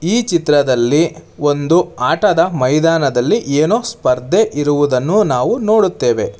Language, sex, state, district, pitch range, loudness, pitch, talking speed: Kannada, male, Karnataka, Bangalore, 145-200 Hz, -14 LUFS, 160 Hz, 95 wpm